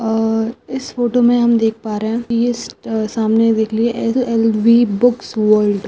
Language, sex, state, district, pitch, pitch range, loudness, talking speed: Hindi, female, Andhra Pradesh, Anantapur, 230 Hz, 220-240 Hz, -16 LUFS, 185 wpm